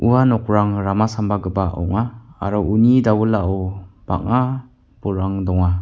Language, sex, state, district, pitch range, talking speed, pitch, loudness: Garo, male, Meghalaya, West Garo Hills, 95-115 Hz, 115 wpm, 105 Hz, -19 LUFS